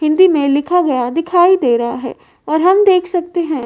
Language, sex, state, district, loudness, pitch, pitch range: Hindi, female, Uttar Pradesh, Varanasi, -13 LUFS, 330 Hz, 280-360 Hz